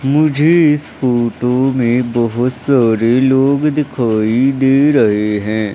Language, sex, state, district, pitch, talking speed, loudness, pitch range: Hindi, male, Madhya Pradesh, Umaria, 125 Hz, 115 wpm, -13 LUFS, 115-140 Hz